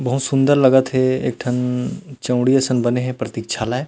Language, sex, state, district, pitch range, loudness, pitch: Chhattisgarhi, male, Chhattisgarh, Rajnandgaon, 125-135 Hz, -18 LUFS, 130 Hz